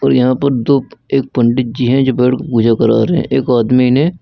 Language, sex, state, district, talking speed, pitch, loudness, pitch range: Hindi, male, Uttar Pradesh, Lucknow, 240 wpm, 125 Hz, -13 LUFS, 120-135 Hz